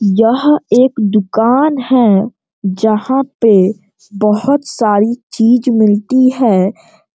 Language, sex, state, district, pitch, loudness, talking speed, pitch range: Hindi, male, Bihar, Sitamarhi, 225 Hz, -12 LUFS, 100 wpm, 210-255 Hz